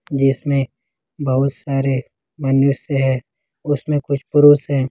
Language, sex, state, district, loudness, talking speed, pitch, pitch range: Hindi, male, Jharkhand, Ranchi, -18 LUFS, 110 wpm, 135 Hz, 135-145 Hz